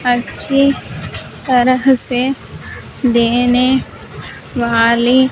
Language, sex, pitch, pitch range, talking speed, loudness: Hindi, female, 250 Hz, 240-265 Hz, 55 wpm, -14 LUFS